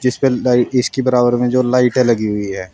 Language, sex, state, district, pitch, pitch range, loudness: Hindi, male, Uttar Pradesh, Saharanpur, 125 Hz, 120-125 Hz, -15 LUFS